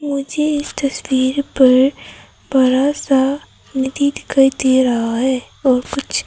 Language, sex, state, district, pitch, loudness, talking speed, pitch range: Hindi, female, Arunachal Pradesh, Papum Pare, 270 Hz, -16 LUFS, 125 wpm, 260-280 Hz